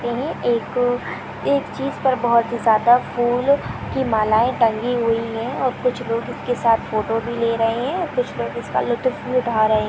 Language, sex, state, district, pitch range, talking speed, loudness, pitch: Hindi, female, Chhattisgarh, Kabirdham, 230-250 Hz, 200 wpm, -20 LUFS, 240 Hz